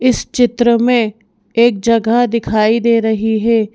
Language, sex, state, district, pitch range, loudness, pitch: Hindi, female, Madhya Pradesh, Bhopal, 220-240 Hz, -14 LUFS, 230 Hz